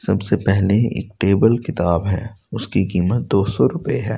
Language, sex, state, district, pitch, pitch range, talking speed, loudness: Hindi, male, Delhi, New Delhi, 105 Hz, 95-120 Hz, 170 wpm, -18 LUFS